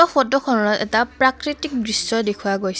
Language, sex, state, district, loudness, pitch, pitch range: Assamese, female, Assam, Kamrup Metropolitan, -19 LUFS, 235 Hz, 210-275 Hz